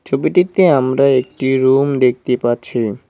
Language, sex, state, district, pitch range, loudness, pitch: Bengali, male, West Bengal, Alipurduar, 125-140 Hz, -15 LUFS, 130 Hz